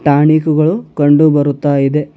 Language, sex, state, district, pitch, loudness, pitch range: Kannada, male, Karnataka, Bidar, 150 Hz, -12 LUFS, 145-155 Hz